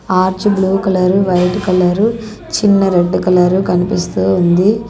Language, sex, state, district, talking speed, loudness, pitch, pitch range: Telugu, female, Andhra Pradesh, Annamaya, 120 wpm, -13 LUFS, 185 Hz, 180-195 Hz